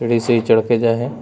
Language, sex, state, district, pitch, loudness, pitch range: Hindi, male, Bihar, Jamui, 115 Hz, -16 LUFS, 115-120 Hz